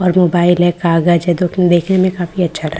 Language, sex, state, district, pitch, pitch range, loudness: Hindi, female, Bihar, Katihar, 175 Hz, 170-180 Hz, -13 LUFS